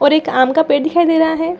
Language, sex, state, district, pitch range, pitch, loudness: Hindi, female, Bihar, Saran, 285-325 Hz, 320 Hz, -14 LUFS